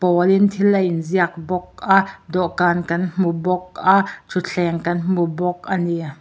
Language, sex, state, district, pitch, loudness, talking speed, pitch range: Mizo, male, Mizoram, Aizawl, 180 Hz, -19 LUFS, 175 wpm, 175-190 Hz